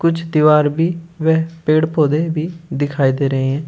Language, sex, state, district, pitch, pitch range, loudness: Hindi, male, Uttar Pradesh, Shamli, 155 Hz, 145-165 Hz, -17 LUFS